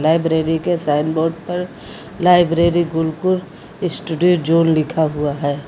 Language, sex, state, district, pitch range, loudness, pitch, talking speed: Hindi, female, Uttar Pradesh, Lucknow, 160-175 Hz, -17 LUFS, 165 Hz, 125 wpm